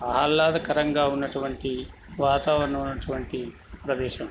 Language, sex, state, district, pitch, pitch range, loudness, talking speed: Telugu, male, Telangana, Nalgonda, 140 Hz, 130-145 Hz, -25 LUFS, 70 wpm